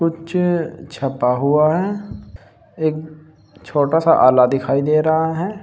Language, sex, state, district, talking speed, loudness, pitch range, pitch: Hindi, male, Uttar Pradesh, Shamli, 130 wpm, -17 LUFS, 135-165 Hz, 155 Hz